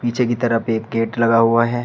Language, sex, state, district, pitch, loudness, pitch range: Hindi, male, Uttar Pradesh, Shamli, 115 Hz, -18 LUFS, 115-120 Hz